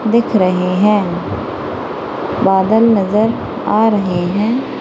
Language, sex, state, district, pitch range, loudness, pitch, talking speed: Hindi, female, Punjab, Kapurthala, 190-225 Hz, -15 LUFS, 210 Hz, 100 wpm